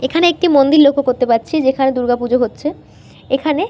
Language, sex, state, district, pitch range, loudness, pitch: Bengali, female, West Bengal, North 24 Parganas, 250-305 Hz, -14 LUFS, 270 Hz